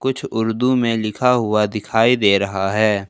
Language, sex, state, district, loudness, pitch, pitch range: Hindi, male, Jharkhand, Ranchi, -18 LUFS, 110 Hz, 105-125 Hz